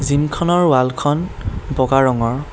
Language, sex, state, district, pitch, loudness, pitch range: Assamese, male, Assam, Kamrup Metropolitan, 140 Hz, -17 LUFS, 130-150 Hz